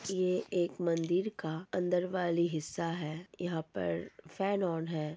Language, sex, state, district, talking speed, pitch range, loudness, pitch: Hindi, female, Uttar Pradesh, Ghazipur, 150 wpm, 160-180 Hz, -34 LUFS, 170 Hz